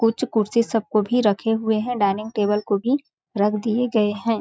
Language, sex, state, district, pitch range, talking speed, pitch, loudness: Hindi, female, Chhattisgarh, Balrampur, 210-230 Hz, 215 wpm, 220 Hz, -21 LUFS